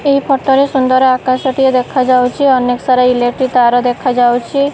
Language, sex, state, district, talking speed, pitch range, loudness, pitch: Odia, female, Odisha, Khordha, 140 wpm, 250-270 Hz, -12 LUFS, 255 Hz